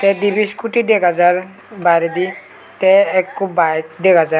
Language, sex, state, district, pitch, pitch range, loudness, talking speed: Chakma, male, Tripura, West Tripura, 190 Hz, 175-200 Hz, -15 LUFS, 150 wpm